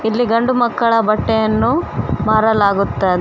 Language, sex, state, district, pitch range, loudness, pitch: Kannada, female, Karnataka, Koppal, 215-235 Hz, -15 LUFS, 220 Hz